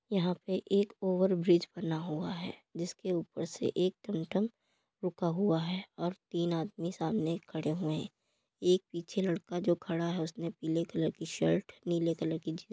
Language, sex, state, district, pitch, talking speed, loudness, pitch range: Hindi, female, Uttar Pradesh, Muzaffarnagar, 175 Hz, 185 wpm, -34 LUFS, 165-185 Hz